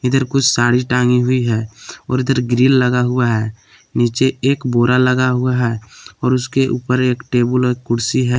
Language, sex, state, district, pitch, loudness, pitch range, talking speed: Hindi, male, Jharkhand, Palamu, 125 Hz, -16 LUFS, 120-130 Hz, 185 wpm